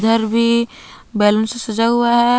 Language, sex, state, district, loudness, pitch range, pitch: Hindi, female, Jharkhand, Palamu, -16 LUFS, 220-240 Hz, 230 Hz